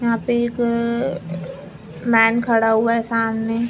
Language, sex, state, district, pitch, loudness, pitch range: Hindi, female, Chhattisgarh, Bilaspur, 230 Hz, -19 LUFS, 220-235 Hz